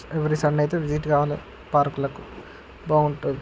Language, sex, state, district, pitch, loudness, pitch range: Telugu, male, Andhra Pradesh, Guntur, 150 Hz, -23 LUFS, 145-150 Hz